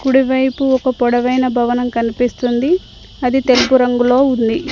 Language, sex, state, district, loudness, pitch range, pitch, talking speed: Telugu, female, Telangana, Mahabubabad, -15 LUFS, 245-265 Hz, 255 Hz, 125 wpm